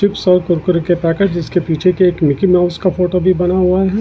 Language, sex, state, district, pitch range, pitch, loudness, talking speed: Hindi, male, Uttarakhand, Tehri Garhwal, 175-185 Hz, 180 Hz, -14 LUFS, 240 wpm